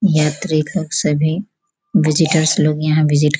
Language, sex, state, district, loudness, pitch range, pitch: Hindi, female, Bihar, Gopalganj, -16 LUFS, 155-170 Hz, 155 Hz